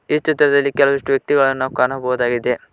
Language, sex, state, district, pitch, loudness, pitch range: Kannada, male, Karnataka, Koppal, 135 Hz, -17 LUFS, 125-140 Hz